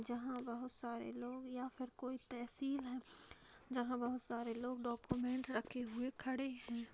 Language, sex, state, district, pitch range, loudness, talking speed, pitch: Hindi, female, Bihar, Gaya, 240-255 Hz, -45 LUFS, 155 wpm, 250 Hz